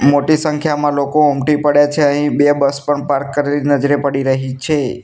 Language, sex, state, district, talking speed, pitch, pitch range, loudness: Gujarati, male, Gujarat, Gandhinagar, 190 wpm, 145 Hz, 140-145 Hz, -15 LUFS